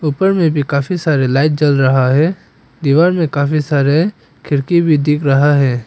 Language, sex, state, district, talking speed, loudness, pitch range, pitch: Hindi, male, Arunachal Pradesh, Papum Pare, 195 wpm, -14 LUFS, 140-160 Hz, 150 Hz